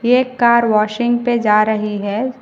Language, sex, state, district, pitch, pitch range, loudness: Hindi, female, Karnataka, Koppal, 235 Hz, 215-245 Hz, -15 LUFS